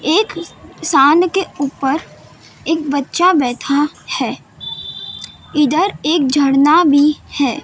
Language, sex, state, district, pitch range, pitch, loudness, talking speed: Hindi, female, Madhya Pradesh, Dhar, 280-340 Hz, 300 Hz, -15 LUFS, 100 wpm